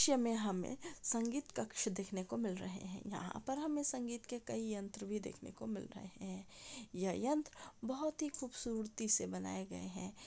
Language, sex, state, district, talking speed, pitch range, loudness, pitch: Hindi, female, Maharashtra, Pune, 180 wpm, 195-260 Hz, -41 LUFS, 220 Hz